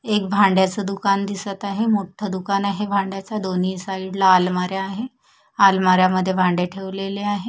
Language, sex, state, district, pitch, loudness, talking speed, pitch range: Marathi, female, Maharashtra, Mumbai Suburban, 195 Hz, -20 LUFS, 135 wpm, 190-205 Hz